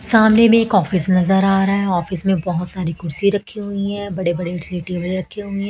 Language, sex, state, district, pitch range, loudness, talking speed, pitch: Hindi, female, Haryana, Jhajjar, 180-200 Hz, -18 LUFS, 230 wpm, 190 Hz